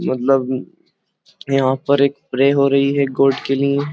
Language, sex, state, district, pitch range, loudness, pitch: Hindi, male, Uttar Pradesh, Jyotiba Phule Nagar, 135-140 Hz, -17 LUFS, 135 Hz